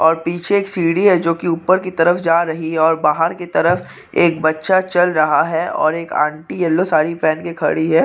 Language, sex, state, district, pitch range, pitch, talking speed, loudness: Hindi, male, Maharashtra, Nagpur, 160-175 Hz, 165 Hz, 230 wpm, -16 LUFS